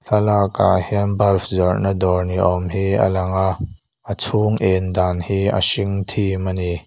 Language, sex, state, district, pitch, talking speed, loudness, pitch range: Mizo, male, Mizoram, Aizawl, 95 Hz, 200 wpm, -18 LUFS, 90-100 Hz